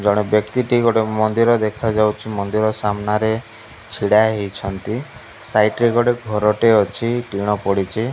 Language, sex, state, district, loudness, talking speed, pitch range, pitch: Odia, male, Odisha, Malkangiri, -18 LUFS, 140 wpm, 105-115 Hz, 110 Hz